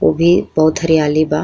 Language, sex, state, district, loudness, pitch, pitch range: Bhojpuri, female, Uttar Pradesh, Ghazipur, -14 LUFS, 155 Hz, 155-165 Hz